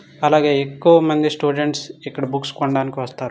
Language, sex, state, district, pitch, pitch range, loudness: Telugu, male, Andhra Pradesh, Guntur, 145 Hz, 140-150 Hz, -18 LUFS